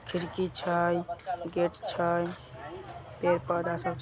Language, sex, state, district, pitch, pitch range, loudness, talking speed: Magahi, male, Bihar, Samastipur, 175 Hz, 170-175 Hz, -30 LUFS, 120 wpm